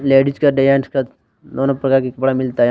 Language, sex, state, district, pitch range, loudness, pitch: Hindi, male, Jharkhand, Deoghar, 130-135 Hz, -16 LUFS, 135 Hz